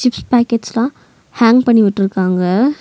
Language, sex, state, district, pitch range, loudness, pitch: Tamil, female, Tamil Nadu, Nilgiris, 200-245 Hz, -14 LUFS, 230 Hz